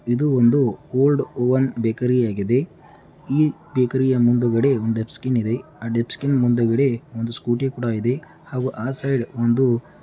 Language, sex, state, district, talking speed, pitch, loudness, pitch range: Kannada, male, Karnataka, Chamarajanagar, 145 wpm, 125 Hz, -21 LUFS, 115-135 Hz